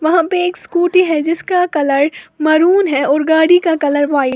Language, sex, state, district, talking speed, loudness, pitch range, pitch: Hindi, female, Uttar Pradesh, Lalitpur, 205 wpm, -13 LUFS, 295-355 Hz, 320 Hz